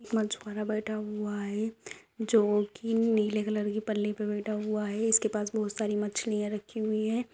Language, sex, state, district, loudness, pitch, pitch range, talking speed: Hindi, female, Bihar, Jamui, -30 LUFS, 215 Hz, 210-220 Hz, 180 wpm